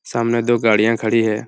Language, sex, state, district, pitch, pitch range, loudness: Hindi, male, Uttar Pradesh, Hamirpur, 115 Hz, 110-115 Hz, -17 LUFS